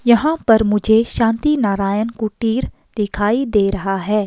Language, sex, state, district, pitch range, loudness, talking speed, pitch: Hindi, female, Himachal Pradesh, Shimla, 205-235 Hz, -17 LUFS, 140 wpm, 220 Hz